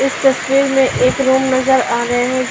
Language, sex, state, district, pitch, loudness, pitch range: Hindi, female, Maharashtra, Chandrapur, 260 Hz, -14 LUFS, 255-270 Hz